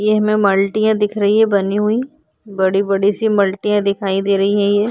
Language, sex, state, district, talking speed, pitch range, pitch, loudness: Hindi, female, Uttar Pradesh, Jyotiba Phule Nagar, 195 wpm, 200-215 Hz, 205 Hz, -16 LUFS